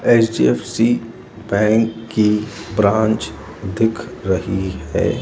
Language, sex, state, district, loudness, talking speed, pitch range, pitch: Hindi, male, Madhya Pradesh, Bhopal, -18 LUFS, 80 wpm, 95-115 Hz, 110 Hz